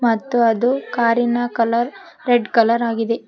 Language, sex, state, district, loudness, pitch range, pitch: Kannada, female, Karnataka, Koppal, -18 LUFS, 230-245 Hz, 235 Hz